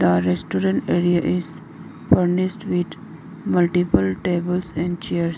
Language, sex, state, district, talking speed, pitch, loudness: English, female, Arunachal Pradesh, Lower Dibang Valley, 110 wpm, 175 Hz, -21 LUFS